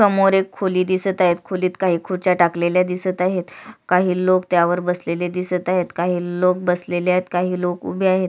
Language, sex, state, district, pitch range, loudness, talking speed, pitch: Marathi, female, Maharashtra, Sindhudurg, 180-185 Hz, -19 LUFS, 180 wpm, 180 Hz